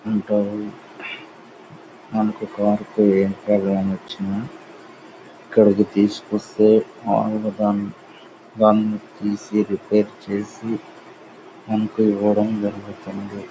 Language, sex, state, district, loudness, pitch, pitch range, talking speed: Telugu, male, Andhra Pradesh, Anantapur, -21 LUFS, 105 Hz, 100-110 Hz, 85 wpm